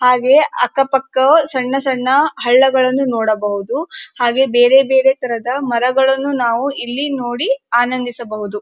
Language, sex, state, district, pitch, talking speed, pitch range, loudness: Kannada, female, Karnataka, Dharwad, 255 Hz, 110 wpm, 240-270 Hz, -15 LUFS